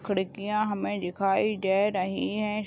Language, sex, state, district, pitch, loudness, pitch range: Hindi, female, Chhattisgarh, Bilaspur, 200 Hz, -28 LUFS, 195-210 Hz